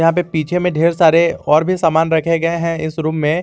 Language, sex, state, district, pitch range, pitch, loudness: Hindi, male, Jharkhand, Garhwa, 160-170 Hz, 165 Hz, -15 LUFS